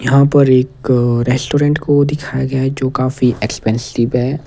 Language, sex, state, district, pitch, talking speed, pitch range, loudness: Hindi, male, Himachal Pradesh, Shimla, 130 Hz, 160 wpm, 125-140 Hz, -14 LUFS